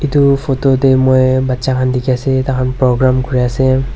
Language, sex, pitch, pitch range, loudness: Nagamese, male, 130 Hz, 130-135 Hz, -13 LUFS